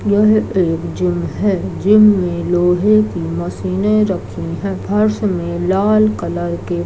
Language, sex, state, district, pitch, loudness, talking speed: Hindi, female, Uttar Pradesh, Gorakhpur, 180 Hz, -16 LUFS, 150 wpm